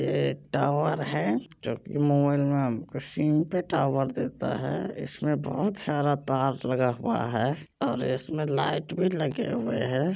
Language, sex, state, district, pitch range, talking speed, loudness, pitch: Maithili, male, Bihar, Supaul, 130-150 Hz, 150 wpm, -28 LUFS, 140 Hz